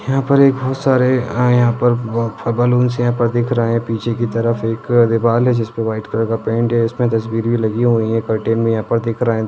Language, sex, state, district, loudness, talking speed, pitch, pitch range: Hindi, male, Bihar, Vaishali, -16 LUFS, 220 wpm, 115 Hz, 115-120 Hz